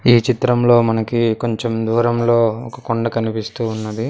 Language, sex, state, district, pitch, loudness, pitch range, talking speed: Telugu, male, Andhra Pradesh, Manyam, 115 Hz, -17 LUFS, 115-120 Hz, 130 wpm